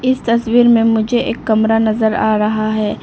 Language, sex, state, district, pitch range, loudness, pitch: Hindi, female, Arunachal Pradesh, Lower Dibang Valley, 215-235 Hz, -14 LUFS, 220 Hz